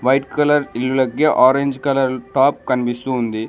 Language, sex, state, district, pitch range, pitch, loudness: Telugu, male, Telangana, Mahabubabad, 125-140 Hz, 130 Hz, -17 LUFS